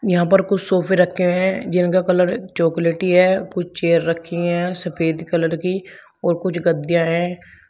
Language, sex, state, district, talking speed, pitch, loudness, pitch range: Hindi, male, Uttar Pradesh, Shamli, 165 wpm, 180 Hz, -19 LUFS, 170-185 Hz